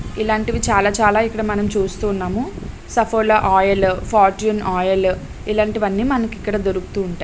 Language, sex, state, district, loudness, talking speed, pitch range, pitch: Telugu, female, Andhra Pradesh, Srikakulam, -18 LUFS, 135 wpm, 190-215 Hz, 210 Hz